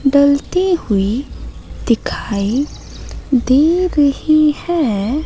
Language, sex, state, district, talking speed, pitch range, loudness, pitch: Hindi, female, Madhya Pradesh, Katni, 70 wpm, 245-310 Hz, -15 LUFS, 280 Hz